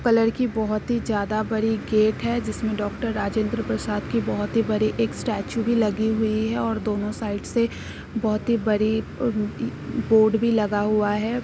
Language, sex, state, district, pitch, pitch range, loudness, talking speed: Hindi, female, Bihar, East Champaran, 220 Hz, 210-230 Hz, -23 LUFS, 185 wpm